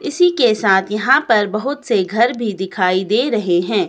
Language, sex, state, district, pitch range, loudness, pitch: Hindi, female, Himachal Pradesh, Shimla, 190-255 Hz, -16 LUFS, 215 Hz